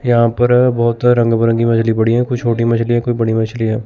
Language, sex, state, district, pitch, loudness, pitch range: Hindi, male, Chandigarh, Chandigarh, 115 Hz, -14 LUFS, 115-120 Hz